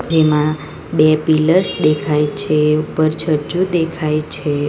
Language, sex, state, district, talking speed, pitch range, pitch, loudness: Gujarati, female, Gujarat, Valsad, 115 wpm, 150-160 Hz, 155 Hz, -16 LUFS